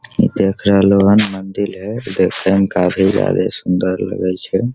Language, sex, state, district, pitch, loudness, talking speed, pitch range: Maithili, male, Bihar, Begusarai, 95 Hz, -15 LUFS, 150 wpm, 95-100 Hz